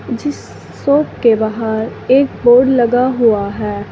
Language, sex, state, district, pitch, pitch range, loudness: Hindi, female, Uttar Pradesh, Saharanpur, 240 Hz, 220-260 Hz, -14 LUFS